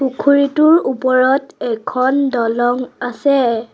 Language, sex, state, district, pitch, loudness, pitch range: Assamese, female, Assam, Sonitpur, 255 Hz, -15 LUFS, 245-280 Hz